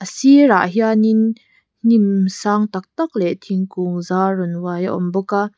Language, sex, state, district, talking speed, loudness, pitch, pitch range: Mizo, female, Mizoram, Aizawl, 160 wpm, -17 LUFS, 190 Hz, 180-220 Hz